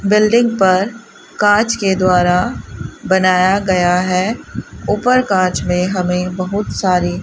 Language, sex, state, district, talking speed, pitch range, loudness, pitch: Hindi, female, Rajasthan, Bikaner, 125 wpm, 180-205 Hz, -15 LUFS, 185 Hz